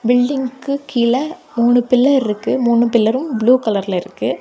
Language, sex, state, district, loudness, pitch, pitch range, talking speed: Tamil, female, Tamil Nadu, Kanyakumari, -16 LUFS, 245 Hz, 235-260 Hz, 135 wpm